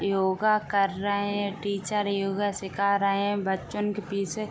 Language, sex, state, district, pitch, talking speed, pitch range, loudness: Hindi, female, Uttar Pradesh, Gorakhpur, 200 Hz, 175 wpm, 195-205 Hz, -27 LUFS